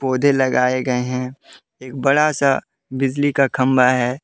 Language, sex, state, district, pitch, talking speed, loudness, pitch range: Hindi, male, Jharkhand, Deoghar, 130 Hz, 140 wpm, -18 LUFS, 125-140 Hz